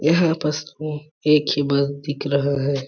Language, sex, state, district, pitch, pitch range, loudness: Hindi, male, Chhattisgarh, Balrampur, 145 Hz, 140-150 Hz, -21 LUFS